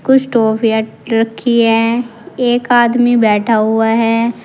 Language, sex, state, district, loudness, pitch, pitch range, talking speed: Hindi, female, Uttar Pradesh, Saharanpur, -13 LUFS, 230 Hz, 225-240 Hz, 120 wpm